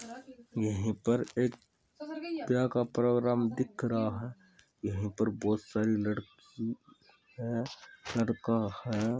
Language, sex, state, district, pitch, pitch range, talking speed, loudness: Hindi, male, Rajasthan, Churu, 115 Hz, 110-125 Hz, 110 wpm, -33 LUFS